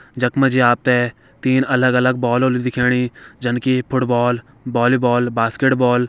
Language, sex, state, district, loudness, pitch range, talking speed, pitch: Garhwali, male, Uttarakhand, Tehri Garhwal, -17 LUFS, 120-130 Hz, 145 wpm, 125 Hz